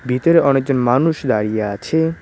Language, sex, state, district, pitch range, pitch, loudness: Bengali, male, West Bengal, Cooch Behar, 120-160 Hz, 135 Hz, -16 LUFS